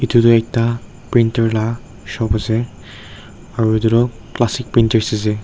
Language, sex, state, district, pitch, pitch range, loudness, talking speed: Nagamese, male, Nagaland, Dimapur, 115 Hz, 110-120 Hz, -17 LUFS, 145 wpm